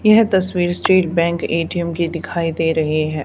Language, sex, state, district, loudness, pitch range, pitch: Hindi, female, Haryana, Charkhi Dadri, -18 LUFS, 165-180 Hz, 170 Hz